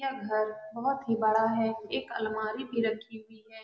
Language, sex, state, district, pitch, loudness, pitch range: Hindi, female, Bihar, Saran, 220 Hz, -31 LUFS, 215-225 Hz